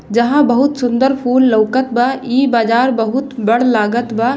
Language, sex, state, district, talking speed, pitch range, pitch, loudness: Bhojpuri, female, Bihar, Gopalganj, 165 wpm, 230-260 Hz, 245 Hz, -14 LUFS